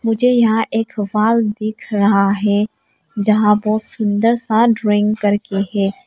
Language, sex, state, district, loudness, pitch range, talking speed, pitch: Hindi, female, Arunachal Pradesh, Papum Pare, -16 LUFS, 205-225 Hz, 150 wpm, 215 Hz